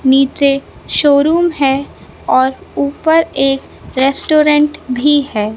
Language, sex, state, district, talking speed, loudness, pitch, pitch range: Hindi, male, Madhya Pradesh, Katni, 95 wpm, -13 LUFS, 280 Hz, 270-300 Hz